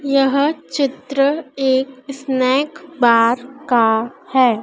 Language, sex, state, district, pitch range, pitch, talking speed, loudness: Hindi, female, Madhya Pradesh, Dhar, 255-280 Hz, 270 Hz, 90 wpm, -17 LUFS